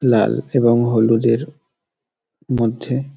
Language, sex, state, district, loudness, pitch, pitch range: Bengali, male, West Bengal, Dakshin Dinajpur, -17 LUFS, 120 Hz, 115-140 Hz